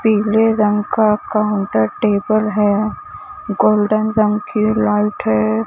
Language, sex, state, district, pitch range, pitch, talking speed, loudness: Hindi, male, Maharashtra, Mumbai Suburban, 205-215 Hz, 210 Hz, 115 wpm, -16 LUFS